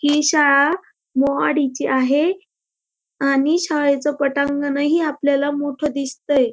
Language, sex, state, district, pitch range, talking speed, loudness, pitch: Marathi, female, Maharashtra, Dhule, 275-300 Hz, 100 wpm, -18 LUFS, 285 Hz